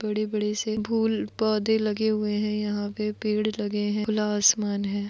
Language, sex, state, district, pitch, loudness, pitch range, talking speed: Hindi, female, Goa, North and South Goa, 210 Hz, -26 LUFS, 210-215 Hz, 190 wpm